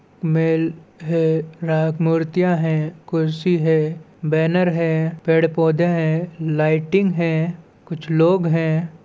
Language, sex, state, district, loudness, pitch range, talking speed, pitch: Hindi, female, Chhattisgarh, Balrampur, -19 LUFS, 160-170 Hz, 105 wpm, 165 Hz